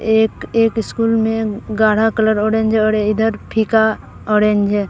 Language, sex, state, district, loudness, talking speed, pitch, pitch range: Hindi, female, Bihar, Katihar, -16 LUFS, 145 wpm, 220 Hz, 210-225 Hz